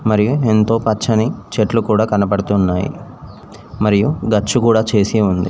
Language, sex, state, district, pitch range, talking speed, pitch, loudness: Telugu, male, Telangana, Mahabubabad, 105-110 Hz, 120 wpm, 110 Hz, -16 LUFS